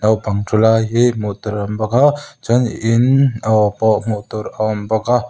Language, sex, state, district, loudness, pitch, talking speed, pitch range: Mizo, male, Mizoram, Aizawl, -16 LUFS, 110 Hz, 215 wpm, 105-120 Hz